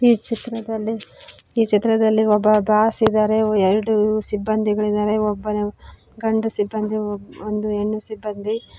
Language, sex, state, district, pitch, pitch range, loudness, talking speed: Kannada, female, Karnataka, Koppal, 215 Hz, 210-220 Hz, -20 LUFS, 100 wpm